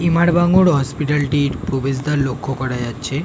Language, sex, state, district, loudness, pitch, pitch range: Bengali, male, West Bengal, North 24 Parganas, -18 LUFS, 140 Hz, 135-160 Hz